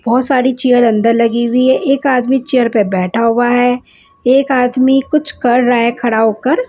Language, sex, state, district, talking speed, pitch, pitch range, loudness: Hindi, female, Punjab, Fazilka, 195 wpm, 245 Hz, 235-260 Hz, -12 LUFS